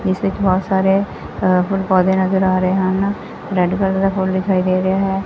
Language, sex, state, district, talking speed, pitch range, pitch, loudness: Punjabi, female, Punjab, Fazilka, 215 wpm, 185-195 Hz, 190 Hz, -17 LUFS